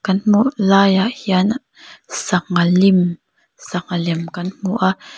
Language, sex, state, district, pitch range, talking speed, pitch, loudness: Mizo, female, Mizoram, Aizawl, 180-205 Hz, 125 wpm, 190 Hz, -17 LUFS